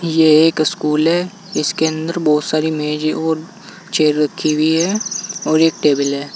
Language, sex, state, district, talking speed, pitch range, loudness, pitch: Hindi, male, Uttar Pradesh, Saharanpur, 170 wpm, 155-175 Hz, -16 LUFS, 160 Hz